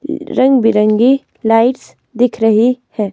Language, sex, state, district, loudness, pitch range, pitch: Hindi, female, Himachal Pradesh, Shimla, -13 LUFS, 225-260 Hz, 240 Hz